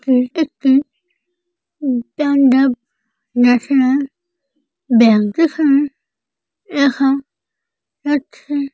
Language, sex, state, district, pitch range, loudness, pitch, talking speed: Bengali, female, West Bengal, Paschim Medinipur, 255-295 Hz, -15 LUFS, 275 Hz, 60 wpm